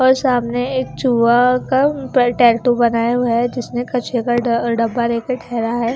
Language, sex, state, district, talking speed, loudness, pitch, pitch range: Hindi, female, Haryana, Charkhi Dadri, 180 wpm, -16 LUFS, 245 Hz, 235-250 Hz